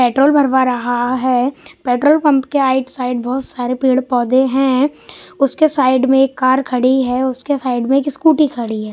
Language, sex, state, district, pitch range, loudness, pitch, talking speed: Hindi, male, Bihar, West Champaran, 250-275 Hz, -15 LUFS, 260 Hz, 195 wpm